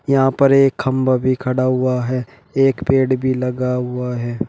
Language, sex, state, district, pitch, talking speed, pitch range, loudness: Hindi, male, Uttar Pradesh, Shamli, 130 Hz, 185 wpm, 125-135 Hz, -17 LUFS